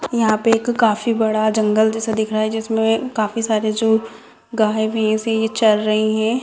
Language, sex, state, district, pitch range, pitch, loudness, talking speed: Hindi, female, Bihar, Madhepura, 215-225 Hz, 220 Hz, -18 LUFS, 175 wpm